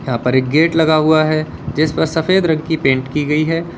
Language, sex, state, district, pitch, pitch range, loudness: Hindi, male, Uttar Pradesh, Lalitpur, 155 Hz, 140-160 Hz, -15 LUFS